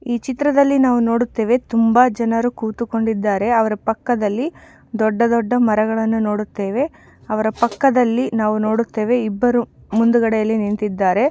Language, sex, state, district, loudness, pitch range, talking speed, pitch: Kannada, female, Karnataka, Mysore, -18 LUFS, 215-245 Hz, 110 wpm, 230 Hz